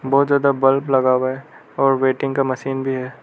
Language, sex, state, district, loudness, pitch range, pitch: Hindi, male, Arunachal Pradesh, Lower Dibang Valley, -18 LUFS, 130-135 Hz, 135 Hz